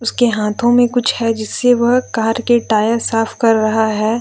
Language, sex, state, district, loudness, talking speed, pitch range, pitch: Hindi, female, Jharkhand, Deoghar, -15 LUFS, 200 wpm, 220-240 Hz, 230 Hz